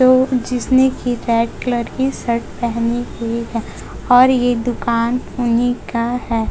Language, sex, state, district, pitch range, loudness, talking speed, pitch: Hindi, female, Chhattisgarh, Raipur, 230-250 Hz, -17 LUFS, 140 wpm, 240 Hz